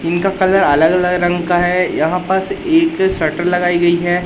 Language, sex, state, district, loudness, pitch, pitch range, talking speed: Hindi, male, Madhya Pradesh, Katni, -14 LUFS, 180 Hz, 175-190 Hz, 195 wpm